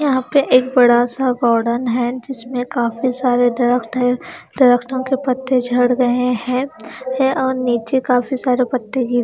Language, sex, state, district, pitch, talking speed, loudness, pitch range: Hindi, female, Haryana, Charkhi Dadri, 250 Hz, 160 wpm, -17 LUFS, 245-260 Hz